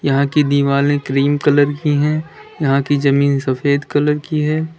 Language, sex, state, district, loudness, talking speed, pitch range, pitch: Hindi, male, Uttar Pradesh, Lalitpur, -16 LUFS, 175 wpm, 140-150 Hz, 145 Hz